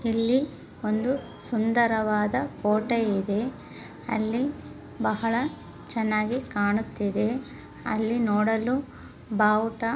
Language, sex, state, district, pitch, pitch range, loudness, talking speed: Kannada, female, Karnataka, Bellary, 225 Hz, 215-235 Hz, -26 LUFS, 70 wpm